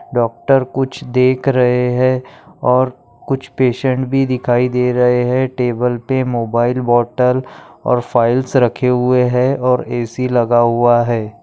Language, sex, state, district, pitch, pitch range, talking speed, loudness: Hindi, male, Maharashtra, Aurangabad, 125 Hz, 120-130 Hz, 140 wpm, -15 LUFS